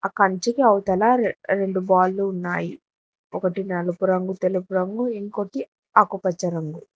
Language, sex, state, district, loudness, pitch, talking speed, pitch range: Telugu, female, Telangana, Hyderabad, -22 LUFS, 190 Hz, 110 wpm, 185-205 Hz